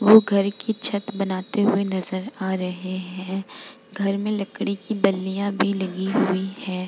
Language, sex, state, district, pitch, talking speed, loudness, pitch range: Hindi, female, Bihar, Vaishali, 195 Hz, 165 wpm, -23 LUFS, 190-210 Hz